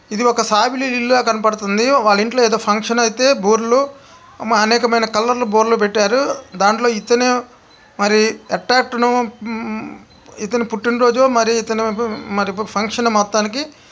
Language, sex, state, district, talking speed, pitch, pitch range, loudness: Telugu, male, Andhra Pradesh, Krishna, 135 wpm, 230 Hz, 220-245 Hz, -16 LUFS